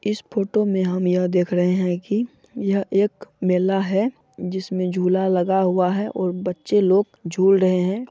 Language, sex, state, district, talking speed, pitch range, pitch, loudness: Hindi, female, Bihar, Supaul, 180 wpm, 180-200 Hz, 190 Hz, -21 LUFS